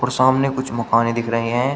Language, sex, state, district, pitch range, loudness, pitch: Hindi, male, Uttar Pradesh, Shamli, 115-130 Hz, -19 LUFS, 120 Hz